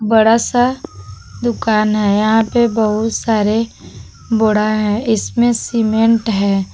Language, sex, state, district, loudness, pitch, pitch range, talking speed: Hindi, female, Jharkhand, Palamu, -15 LUFS, 220 Hz, 210-230 Hz, 115 wpm